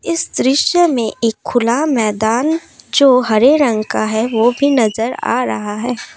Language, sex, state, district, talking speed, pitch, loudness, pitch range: Hindi, female, Assam, Kamrup Metropolitan, 165 wpm, 240 Hz, -14 LUFS, 225-280 Hz